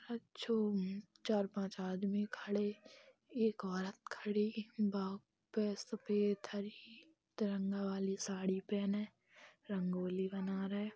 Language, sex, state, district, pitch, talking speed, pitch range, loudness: Bundeli, female, Uttar Pradesh, Hamirpur, 205 Hz, 90 wpm, 195-215 Hz, -40 LUFS